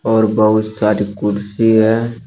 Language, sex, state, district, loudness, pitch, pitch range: Hindi, male, Uttar Pradesh, Shamli, -15 LUFS, 110 Hz, 105-110 Hz